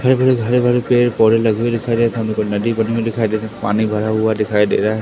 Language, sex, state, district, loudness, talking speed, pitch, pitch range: Hindi, male, Madhya Pradesh, Katni, -16 LUFS, 300 wpm, 115 Hz, 110-115 Hz